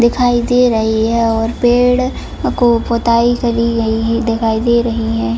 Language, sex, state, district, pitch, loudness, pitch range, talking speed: Hindi, female, Jharkhand, Jamtara, 235 Hz, -14 LUFS, 225-240 Hz, 155 wpm